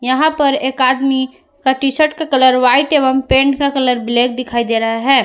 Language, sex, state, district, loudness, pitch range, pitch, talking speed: Hindi, female, Jharkhand, Palamu, -14 LUFS, 250-280 Hz, 265 Hz, 205 wpm